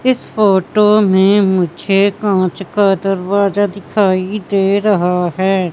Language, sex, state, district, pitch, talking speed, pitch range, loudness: Hindi, female, Madhya Pradesh, Katni, 195 Hz, 115 wpm, 190-205 Hz, -14 LUFS